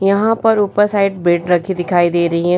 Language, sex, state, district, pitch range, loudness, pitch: Hindi, female, Bihar, Vaishali, 175-205 Hz, -15 LUFS, 180 Hz